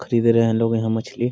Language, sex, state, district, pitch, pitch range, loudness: Hindi, male, Bihar, Sitamarhi, 115 Hz, 115-120 Hz, -19 LUFS